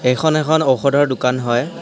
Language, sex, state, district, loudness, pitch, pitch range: Assamese, male, Assam, Hailakandi, -16 LUFS, 140 Hz, 125-155 Hz